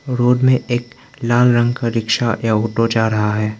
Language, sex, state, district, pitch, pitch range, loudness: Hindi, male, Arunachal Pradesh, Lower Dibang Valley, 120 Hz, 110-125 Hz, -16 LUFS